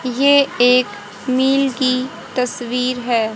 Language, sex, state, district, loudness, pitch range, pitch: Hindi, female, Haryana, Jhajjar, -17 LUFS, 245-260 Hz, 250 Hz